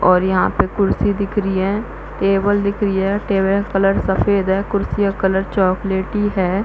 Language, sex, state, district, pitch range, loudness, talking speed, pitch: Hindi, female, Chhattisgarh, Bastar, 190-200 Hz, -18 LUFS, 190 wpm, 195 Hz